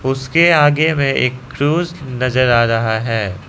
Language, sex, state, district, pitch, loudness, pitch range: Hindi, male, Arunachal Pradesh, Lower Dibang Valley, 130 Hz, -15 LUFS, 120-150 Hz